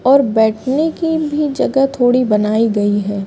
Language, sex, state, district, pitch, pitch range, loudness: Hindi, female, Uttar Pradesh, Varanasi, 250 Hz, 215-280 Hz, -15 LUFS